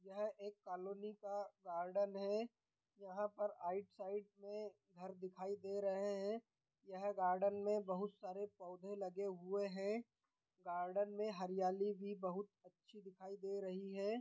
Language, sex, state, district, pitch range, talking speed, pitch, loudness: Hindi, male, Chhattisgarh, Bilaspur, 190-205 Hz, 150 wpm, 200 Hz, -45 LUFS